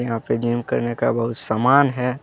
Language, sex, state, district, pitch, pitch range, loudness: Hindi, male, Jharkhand, Deoghar, 120 Hz, 115-125 Hz, -19 LUFS